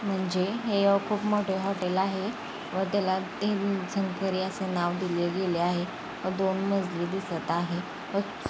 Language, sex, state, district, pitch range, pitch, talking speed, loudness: Marathi, female, Maharashtra, Sindhudurg, 180-200 Hz, 190 Hz, 135 wpm, -29 LUFS